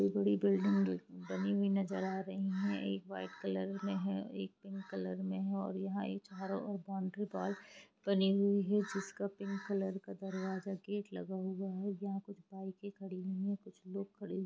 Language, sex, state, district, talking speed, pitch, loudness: Hindi, female, Jharkhand, Jamtara, 200 wpm, 195 Hz, -38 LUFS